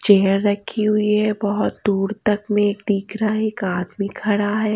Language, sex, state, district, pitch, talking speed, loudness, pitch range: Hindi, female, Haryana, Jhajjar, 205 Hz, 190 wpm, -20 LUFS, 200-215 Hz